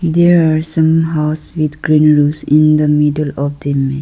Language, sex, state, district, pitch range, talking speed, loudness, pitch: English, female, Arunachal Pradesh, Lower Dibang Valley, 150-160 Hz, 195 wpm, -13 LUFS, 155 Hz